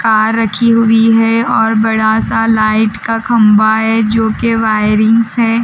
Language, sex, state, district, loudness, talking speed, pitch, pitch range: Hindi, female, Bihar, Patna, -11 LUFS, 160 wpm, 225 Hz, 220-230 Hz